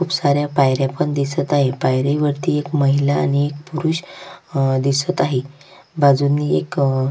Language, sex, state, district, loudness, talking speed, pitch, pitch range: Marathi, female, Maharashtra, Sindhudurg, -18 LUFS, 150 wpm, 140 Hz, 135-150 Hz